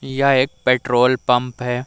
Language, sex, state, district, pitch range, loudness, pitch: Hindi, male, Bihar, Vaishali, 125-130 Hz, -17 LUFS, 125 Hz